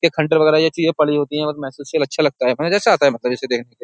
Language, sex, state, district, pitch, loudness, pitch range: Hindi, male, Uttar Pradesh, Jyotiba Phule Nagar, 150 Hz, -17 LUFS, 135-155 Hz